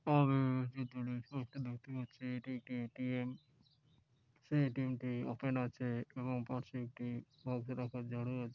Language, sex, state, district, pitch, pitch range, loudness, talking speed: Bengali, male, West Bengal, Dakshin Dinajpur, 125 Hz, 125-130 Hz, -40 LUFS, 180 wpm